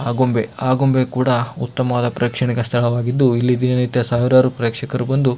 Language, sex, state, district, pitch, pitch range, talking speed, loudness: Kannada, male, Karnataka, Shimoga, 125 Hz, 120-130 Hz, 145 wpm, -18 LUFS